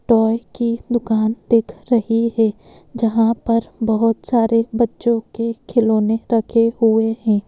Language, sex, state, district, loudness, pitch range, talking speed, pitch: Hindi, female, Madhya Pradesh, Bhopal, -17 LUFS, 225-230 Hz, 130 wpm, 230 Hz